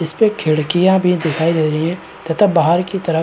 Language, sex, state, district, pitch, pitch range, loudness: Hindi, male, Uttar Pradesh, Varanasi, 170 Hz, 160-185 Hz, -16 LUFS